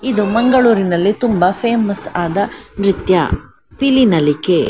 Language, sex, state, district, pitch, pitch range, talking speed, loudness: Kannada, female, Karnataka, Dakshina Kannada, 200 Hz, 180-235 Hz, 90 wpm, -15 LUFS